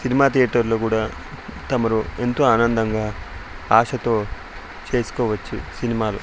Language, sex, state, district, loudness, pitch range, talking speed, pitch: Telugu, male, Andhra Pradesh, Sri Satya Sai, -21 LUFS, 105-120 Hz, 95 wpm, 110 Hz